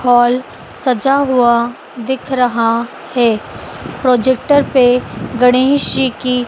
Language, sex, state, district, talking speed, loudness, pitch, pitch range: Hindi, female, Madhya Pradesh, Dhar, 100 wpm, -14 LUFS, 250 Hz, 240-260 Hz